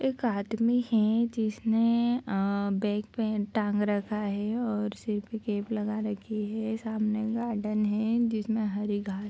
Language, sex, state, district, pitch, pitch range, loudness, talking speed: Hindi, female, Bihar, Madhepura, 215 Hz, 210-225 Hz, -29 LUFS, 155 wpm